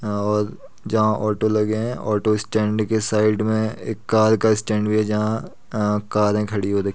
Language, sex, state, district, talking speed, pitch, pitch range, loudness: Hindi, male, Uttar Pradesh, Muzaffarnagar, 200 wpm, 105 Hz, 105-110 Hz, -21 LUFS